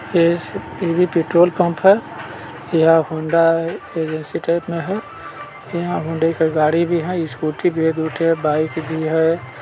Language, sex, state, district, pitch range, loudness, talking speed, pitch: Chhattisgarhi, male, Chhattisgarh, Balrampur, 160-170 Hz, -18 LUFS, 150 wpm, 165 Hz